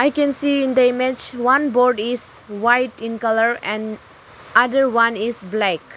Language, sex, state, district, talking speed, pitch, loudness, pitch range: English, female, Arunachal Pradesh, Lower Dibang Valley, 170 wpm, 240 Hz, -18 LUFS, 225-260 Hz